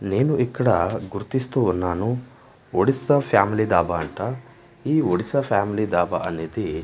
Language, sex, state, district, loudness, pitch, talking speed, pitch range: Telugu, male, Andhra Pradesh, Manyam, -22 LUFS, 115 Hz, 115 wpm, 95-130 Hz